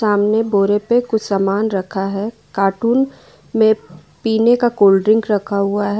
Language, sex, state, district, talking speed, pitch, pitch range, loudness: Hindi, female, Jharkhand, Ranchi, 160 wpm, 210 Hz, 200-225 Hz, -16 LUFS